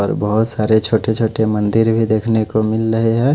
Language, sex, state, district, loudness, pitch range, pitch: Hindi, male, Chhattisgarh, Raipur, -16 LUFS, 110-115 Hz, 110 Hz